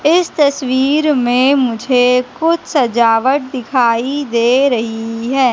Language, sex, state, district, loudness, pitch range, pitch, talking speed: Hindi, female, Madhya Pradesh, Katni, -14 LUFS, 240-285 Hz, 255 Hz, 110 wpm